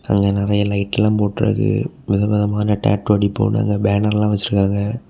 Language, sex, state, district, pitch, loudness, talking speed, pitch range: Tamil, male, Tamil Nadu, Kanyakumari, 105 Hz, -18 LUFS, 140 wpm, 100-105 Hz